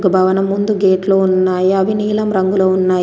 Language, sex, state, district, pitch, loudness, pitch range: Telugu, female, Telangana, Komaram Bheem, 190 Hz, -14 LUFS, 185-200 Hz